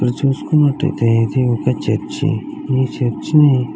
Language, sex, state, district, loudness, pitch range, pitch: Telugu, male, Andhra Pradesh, Srikakulam, -16 LUFS, 120-145 Hz, 130 Hz